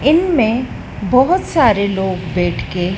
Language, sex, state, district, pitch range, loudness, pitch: Hindi, female, Madhya Pradesh, Dhar, 185-310 Hz, -15 LUFS, 220 Hz